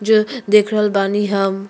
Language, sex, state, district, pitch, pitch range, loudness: Bhojpuri, female, Uttar Pradesh, Deoria, 205 Hz, 195-215 Hz, -16 LUFS